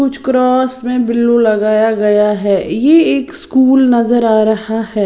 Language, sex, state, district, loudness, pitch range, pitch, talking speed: Hindi, female, Odisha, Sambalpur, -12 LUFS, 215-260 Hz, 235 Hz, 165 wpm